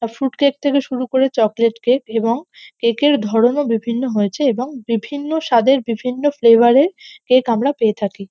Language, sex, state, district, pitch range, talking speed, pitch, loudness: Bengali, female, West Bengal, North 24 Parganas, 230-280 Hz, 175 wpm, 250 Hz, -17 LUFS